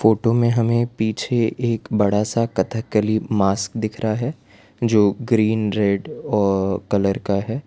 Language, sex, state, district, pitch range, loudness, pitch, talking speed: Hindi, male, Gujarat, Valsad, 100-115 Hz, -20 LUFS, 110 Hz, 150 wpm